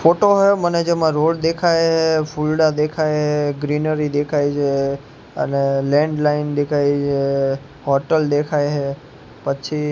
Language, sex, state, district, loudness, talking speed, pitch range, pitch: Gujarati, male, Gujarat, Gandhinagar, -18 LUFS, 125 wpm, 140-155 Hz, 150 Hz